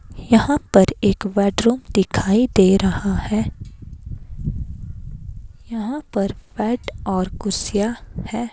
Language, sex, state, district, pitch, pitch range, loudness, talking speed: Hindi, female, Himachal Pradesh, Shimla, 200 Hz, 170-225 Hz, -20 LUFS, 105 wpm